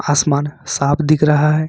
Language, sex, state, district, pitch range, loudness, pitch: Hindi, male, Jharkhand, Ranchi, 145-155 Hz, -16 LUFS, 150 Hz